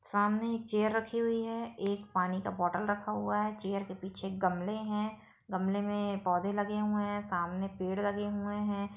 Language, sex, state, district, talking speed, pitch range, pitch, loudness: Hindi, female, Bihar, Saran, 195 wpm, 190-210 Hz, 205 Hz, -34 LUFS